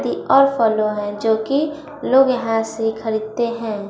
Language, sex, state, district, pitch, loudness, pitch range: Hindi, female, Chhattisgarh, Raipur, 225 Hz, -19 LUFS, 220-265 Hz